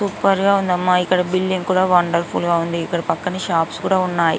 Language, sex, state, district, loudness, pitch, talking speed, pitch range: Telugu, female, Andhra Pradesh, Anantapur, -18 LUFS, 180 Hz, 190 wpm, 170-185 Hz